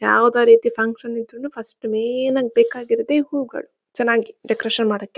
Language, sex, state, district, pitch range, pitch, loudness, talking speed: Kannada, female, Karnataka, Bellary, 225-245 Hz, 235 Hz, -19 LUFS, 140 wpm